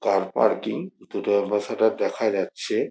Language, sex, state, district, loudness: Bengali, male, West Bengal, Jhargram, -24 LUFS